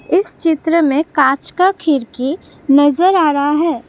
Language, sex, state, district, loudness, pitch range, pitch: Hindi, female, Assam, Kamrup Metropolitan, -14 LUFS, 285-335 Hz, 305 Hz